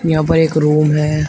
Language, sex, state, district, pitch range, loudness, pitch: Hindi, male, Uttar Pradesh, Shamli, 150-160 Hz, -14 LUFS, 155 Hz